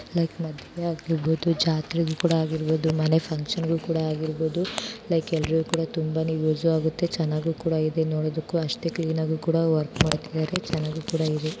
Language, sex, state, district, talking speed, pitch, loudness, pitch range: Kannada, female, Karnataka, Bijapur, 120 wpm, 160 Hz, -26 LUFS, 155-165 Hz